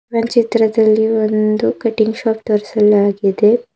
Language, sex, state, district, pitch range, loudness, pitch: Kannada, female, Karnataka, Bidar, 215-230 Hz, -14 LUFS, 220 Hz